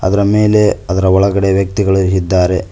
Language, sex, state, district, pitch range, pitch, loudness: Kannada, male, Karnataka, Koppal, 95-100 Hz, 95 Hz, -12 LUFS